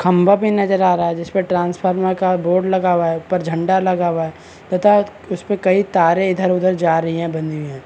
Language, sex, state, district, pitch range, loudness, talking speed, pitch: Hindi, male, Maharashtra, Chandrapur, 170-190 Hz, -17 LUFS, 245 wpm, 185 Hz